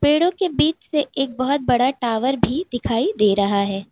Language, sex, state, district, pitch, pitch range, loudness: Hindi, female, Uttar Pradesh, Lalitpur, 260 Hz, 225-295 Hz, -20 LUFS